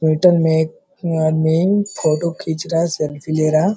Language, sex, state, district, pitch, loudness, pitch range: Hindi, male, Uttar Pradesh, Hamirpur, 160 Hz, -18 LUFS, 155-175 Hz